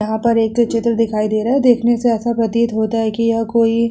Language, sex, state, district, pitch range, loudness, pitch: Hindi, female, Uttar Pradesh, Hamirpur, 225-235 Hz, -16 LUFS, 230 Hz